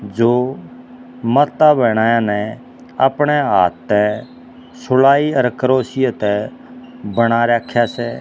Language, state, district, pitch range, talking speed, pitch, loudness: Haryanvi, Haryana, Rohtak, 115-150 Hz, 110 wpm, 130 Hz, -15 LUFS